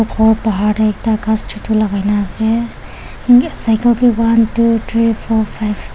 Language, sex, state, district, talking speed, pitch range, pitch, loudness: Nagamese, female, Nagaland, Dimapur, 160 wpm, 215-230 Hz, 220 Hz, -14 LUFS